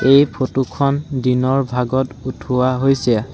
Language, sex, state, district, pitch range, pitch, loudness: Assamese, male, Assam, Sonitpur, 125-135 Hz, 130 Hz, -17 LUFS